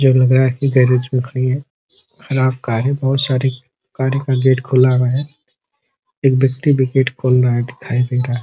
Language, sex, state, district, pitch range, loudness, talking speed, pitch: Hindi, male, Uttar Pradesh, Ghazipur, 125-135 Hz, -16 LUFS, 215 wpm, 130 Hz